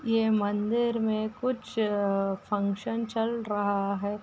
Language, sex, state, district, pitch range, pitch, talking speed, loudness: Hindi, female, Uttar Pradesh, Ghazipur, 205-225 Hz, 215 Hz, 115 wpm, -28 LUFS